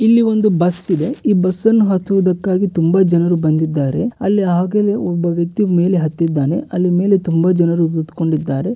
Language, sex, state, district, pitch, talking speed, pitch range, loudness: Kannada, male, Karnataka, Bellary, 180 Hz, 145 wpm, 165-200 Hz, -15 LUFS